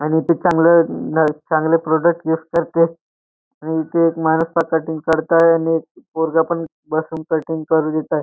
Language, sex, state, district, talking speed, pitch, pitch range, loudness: Marathi, male, Maharashtra, Nagpur, 175 wpm, 160 Hz, 160-165 Hz, -17 LUFS